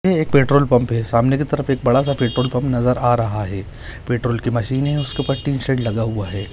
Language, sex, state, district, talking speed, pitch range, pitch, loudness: Hindi, male, Jharkhand, Jamtara, 240 wpm, 115-135 Hz, 125 Hz, -18 LUFS